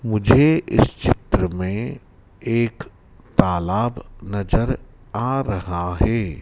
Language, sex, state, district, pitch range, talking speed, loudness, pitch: Hindi, male, Madhya Pradesh, Dhar, 95-120 Hz, 95 wpm, -21 LUFS, 105 Hz